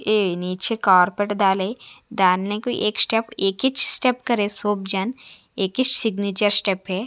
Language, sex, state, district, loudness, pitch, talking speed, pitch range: Hindi, female, Chhattisgarh, Raipur, -19 LUFS, 205 Hz, 155 wpm, 195-235 Hz